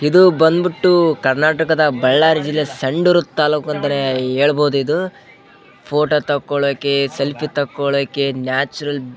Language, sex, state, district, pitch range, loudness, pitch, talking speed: Kannada, male, Karnataka, Bellary, 140-160 Hz, -16 LUFS, 145 Hz, 120 wpm